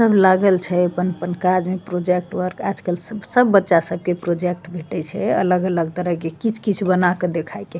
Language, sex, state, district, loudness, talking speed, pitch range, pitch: Maithili, female, Bihar, Begusarai, -20 LUFS, 185 wpm, 175-190 Hz, 180 Hz